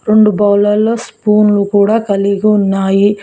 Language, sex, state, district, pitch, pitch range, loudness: Telugu, female, Telangana, Mahabubabad, 205 Hz, 200-215 Hz, -11 LUFS